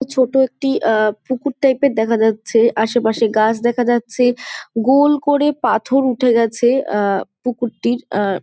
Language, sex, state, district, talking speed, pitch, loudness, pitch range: Bengali, female, West Bengal, Malda, 150 wpm, 240 Hz, -16 LUFS, 220-265 Hz